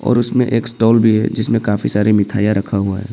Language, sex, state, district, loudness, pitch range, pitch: Hindi, male, Arunachal Pradesh, Papum Pare, -15 LUFS, 105-115 Hz, 110 Hz